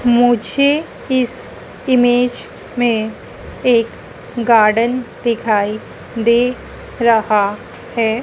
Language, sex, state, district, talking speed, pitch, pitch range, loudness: Hindi, female, Madhya Pradesh, Dhar, 75 wpm, 235 Hz, 225-245 Hz, -16 LUFS